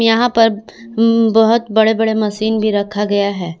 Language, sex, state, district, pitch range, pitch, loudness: Hindi, female, Jharkhand, Garhwa, 210-225 Hz, 220 Hz, -14 LUFS